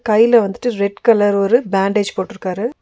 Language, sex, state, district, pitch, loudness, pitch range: Tamil, female, Tamil Nadu, Nilgiris, 210 Hz, -16 LUFS, 200-230 Hz